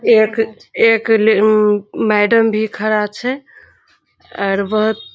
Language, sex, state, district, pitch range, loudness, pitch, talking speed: Maithili, female, Bihar, Saharsa, 210-225 Hz, -15 LUFS, 215 Hz, 115 wpm